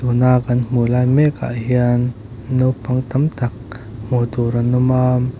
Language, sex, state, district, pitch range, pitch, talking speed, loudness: Mizo, male, Mizoram, Aizawl, 120-125 Hz, 125 Hz, 180 wpm, -17 LUFS